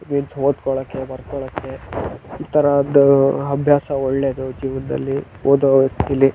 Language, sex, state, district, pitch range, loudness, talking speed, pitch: Kannada, male, Karnataka, Dharwad, 135-140 Hz, -18 LUFS, 75 wpm, 135 Hz